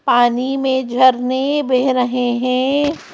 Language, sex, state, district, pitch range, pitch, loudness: Hindi, female, Madhya Pradesh, Bhopal, 250-265 Hz, 260 Hz, -16 LUFS